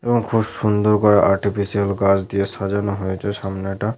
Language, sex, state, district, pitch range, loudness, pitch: Bengali, male, West Bengal, Malda, 100-105 Hz, -19 LUFS, 100 Hz